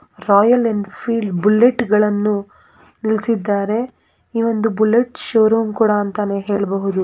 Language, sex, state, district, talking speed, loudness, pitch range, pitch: Kannada, female, Karnataka, Gulbarga, 95 wpm, -17 LUFS, 205-230 Hz, 215 Hz